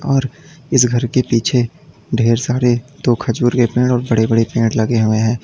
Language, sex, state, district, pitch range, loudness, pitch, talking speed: Hindi, male, Uttar Pradesh, Lalitpur, 115-130 Hz, -16 LUFS, 120 Hz, 200 wpm